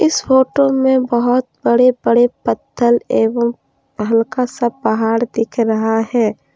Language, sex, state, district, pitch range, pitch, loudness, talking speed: Hindi, female, Jharkhand, Deoghar, 225-250 Hz, 240 Hz, -15 LUFS, 130 wpm